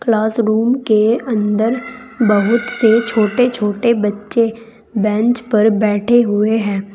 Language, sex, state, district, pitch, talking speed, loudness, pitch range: Hindi, female, Uttar Pradesh, Saharanpur, 225 Hz, 110 wpm, -15 LUFS, 210-235 Hz